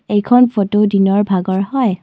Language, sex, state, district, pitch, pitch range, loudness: Assamese, female, Assam, Kamrup Metropolitan, 205 Hz, 195-225 Hz, -14 LUFS